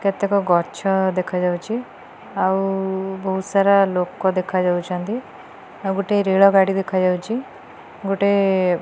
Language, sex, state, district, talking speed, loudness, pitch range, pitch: Odia, female, Odisha, Khordha, 115 wpm, -20 LUFS, 185-200 Hz, 190 Hz